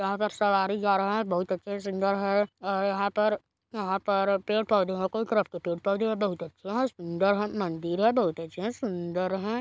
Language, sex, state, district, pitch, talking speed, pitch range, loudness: Hindi, female, Chhattisgarh, Balrampur, 200 Hz, 220 wpm, 190-210 Hz, -28 LUFS